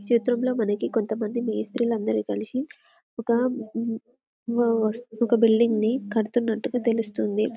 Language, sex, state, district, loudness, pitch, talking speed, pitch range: Telugu, female, Telangana, Karimnagar, -25 LUFS, 230 Hz, 125 wpm, 220-240 Hz